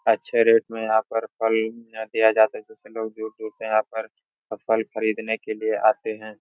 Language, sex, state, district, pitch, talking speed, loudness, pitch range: Hindi, male, Uttar Pradesh, Etah, 110 Hz, 180 wpm, -23 LUFS, 110-115 Hz